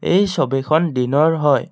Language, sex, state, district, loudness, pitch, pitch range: Assamese, male, Assam, Kamrup Metropolitan, -17 LUFS, 155 Hz, 135-170 Hz